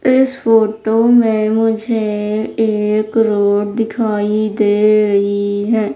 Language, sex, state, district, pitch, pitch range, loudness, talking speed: Hindi, female, Madhya Pradesh, Umaria, 215 Hz, 210-225 Hz, -14 LUFS, 100 wpm